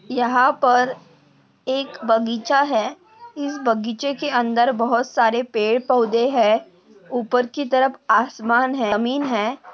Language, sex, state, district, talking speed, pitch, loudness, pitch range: Hindi, female, Maharashtra, Chandrapur, 130 wpm, 250 Hz, -20 LUFS, 230-270 Hz